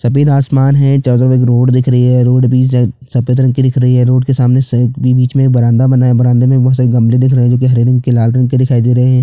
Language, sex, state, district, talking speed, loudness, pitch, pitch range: Hindi, male, Chhattisgarh, Jashpur, 305 wpm, -10 LUFS, 125 Hz, 125-130 Hz